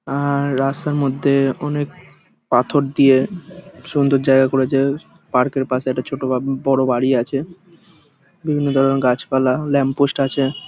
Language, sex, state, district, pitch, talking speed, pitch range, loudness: Bengali, male, West Bengal, Paschim Medinipur, 135 Hz, 135 wpm, 135-145 Hz, -18 LUFS